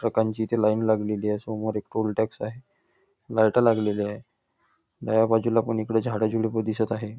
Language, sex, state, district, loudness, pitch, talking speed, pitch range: Marathi, male, Maharashtra, Nagpur, -25 LUFS, 110 Hz, 165 wpm, 110-115 Hz